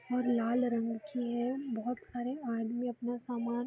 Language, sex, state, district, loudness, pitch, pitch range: Hindi, female, Bihar, Araria, -35 LUFS, 240 Hz, 235-245 Hz